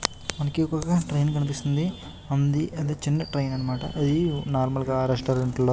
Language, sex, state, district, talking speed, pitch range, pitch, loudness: Telugu, male, Andhra Pradesh, Chittoor, 145 wpm, 130-155 Hz, 145 Hz, -26 LUFS